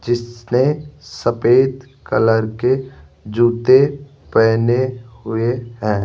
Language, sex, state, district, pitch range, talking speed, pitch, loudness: Hindi, male, Rajasthan, Jaipur, 115-130 Hz, 80 wpm, 120 Hz, -17 LUFS